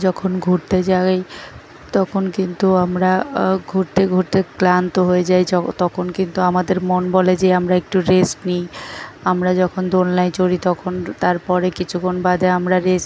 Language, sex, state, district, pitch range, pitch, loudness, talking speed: Bengali, female, West Bengal, North 24 Parganas, 180-185 Hz, 185 Hz, -17 LUFS, 145 wpm